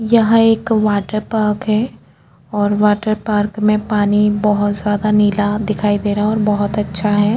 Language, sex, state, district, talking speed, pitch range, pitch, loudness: Hindi, female, Maharashtra, Chandrapur, 170 wpm, 205-215 Hz, 210 Hz, -16 LUFS